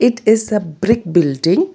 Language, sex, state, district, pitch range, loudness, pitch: English, female, Telangana, Hyderabad, 170-230 Hz, -15 LUFS, 215 Hz